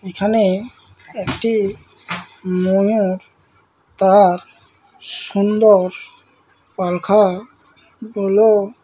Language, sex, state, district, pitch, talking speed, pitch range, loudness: Bengali, male, West Bengal, Malda, 200 Hz, 40 wpm, 185-210 Hz, -16 LUFS